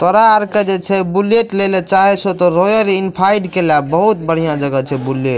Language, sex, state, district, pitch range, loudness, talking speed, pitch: Maithili, male, Bihar, Madhepura, 165-200 Hz, -12 LUFS, 225 wpm, 190 Hz